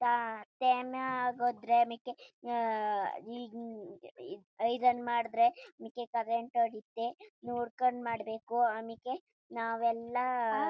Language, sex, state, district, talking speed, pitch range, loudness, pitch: Kannada, female, Karnataka, Chamarajanagar, 75 wpm, 230-250 Hz, -33 LUFS, 235 Hz